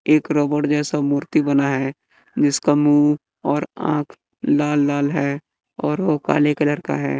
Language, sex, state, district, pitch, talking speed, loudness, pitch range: Hindi, male, Bihar, West Champaran, 145 Hz, 160 wpm, -19 LUFS, 140-150 Hz